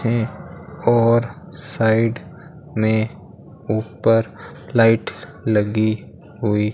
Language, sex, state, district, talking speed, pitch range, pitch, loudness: Hindi, male, Rajasthan, Bikaner, 80 wpm, 110-135 Hz, 115 Hz, -20 LUFS